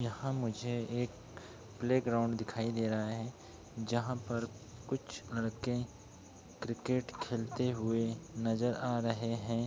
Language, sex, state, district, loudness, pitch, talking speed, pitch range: Hindi, male, Bihar, Begusarai, -37 LUFS, 115 Hz, 125 wpm, 110-120 Hz